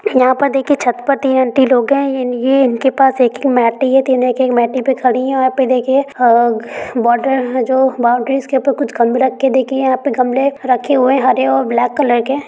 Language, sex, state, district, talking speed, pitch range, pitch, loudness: Hindi, female, Bihar, Gaya, 220 wpm, 250-270 Hz, 260 Hz, -13 LUFS